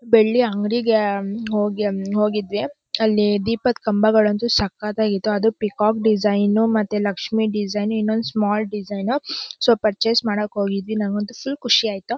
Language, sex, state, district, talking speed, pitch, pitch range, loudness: Kannada, female, Karnataka, Shimoga, 125 wpm, 215 Hz, 205-225 Hz, -20 LUFS